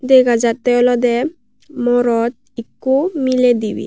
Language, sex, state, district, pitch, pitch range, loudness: Chakma, female, Tripura, West Tripura, 245 Hz, 235-260 Hz, -15 LUFS